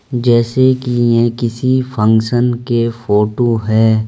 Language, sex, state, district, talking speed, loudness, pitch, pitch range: Hindi, male, Uttar Pradesh, Saharanpur, 115 wpm, -14 LUFS, 120 Hz, 110-125 Hz